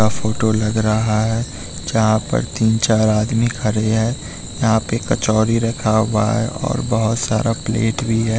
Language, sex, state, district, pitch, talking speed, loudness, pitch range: Hindi, male, Bihar, West Champaran, 110 Hz, 165 wpm, -18 LUFS, 110-115 Hz